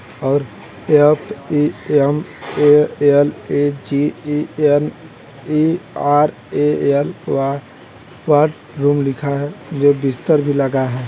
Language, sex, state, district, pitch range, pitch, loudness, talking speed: Hindi, male, Chhattisgarh, Balrampur, 140-150 Hz, 145 Hz, -16 LUFS, 120 wpm